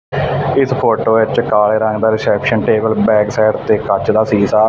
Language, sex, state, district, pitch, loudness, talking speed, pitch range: Punjabi, male, Punjab, Fazilka, 110 Hz, -14 LUFS, 180 wpm, 105-110 Hz